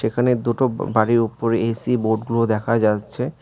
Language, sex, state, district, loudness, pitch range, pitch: Bengali, male, West Bengal, Cooch Behar, -20 LUFS, 110-120 Hz, 115 Hz